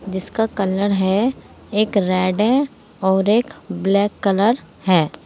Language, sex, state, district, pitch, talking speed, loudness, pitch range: Hindi, female, Uttar Pradesh, Saharanpur, 200 Hz, 125 wpm, -19 LUFS, 190-220 Hz